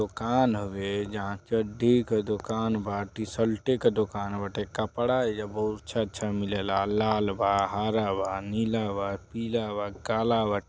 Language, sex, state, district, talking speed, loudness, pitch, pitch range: Bhojpuri, male, Uttar Pradesh, Deoria, 150 wpm, -28 LUFS, 105 Hz, 100-110 Hz